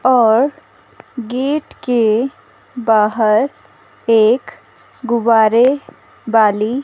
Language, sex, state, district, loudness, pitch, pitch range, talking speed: Hindi, female, Himachal Pradesh, Shimla, -15 LUFS, 240 Hz, 220-260 Hz, 60 wpm